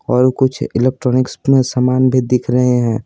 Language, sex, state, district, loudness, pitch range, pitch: Hindi, male, Bihar, Patna, -14 LUFS, 125-130 Hz, 130 Hz